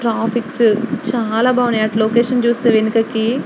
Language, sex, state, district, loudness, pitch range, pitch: Telugu, female, Andhra Pradesh, Srikakulam, -16 LUFS, 225-240 Hz, 230 Hz